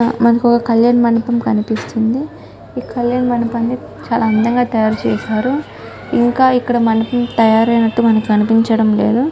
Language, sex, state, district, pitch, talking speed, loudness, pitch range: Telugu, female, Telangana, Nalgonda, 235 Hz, 110 wpm, -14 LUFS, 225-240 Hz